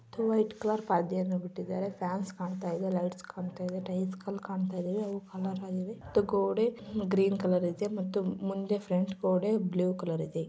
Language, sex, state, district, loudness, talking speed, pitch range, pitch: Kannada, female, Karnataka, Belgaum, -32 LUFS, 160 wpm, 180-200 Hz, 190 Hz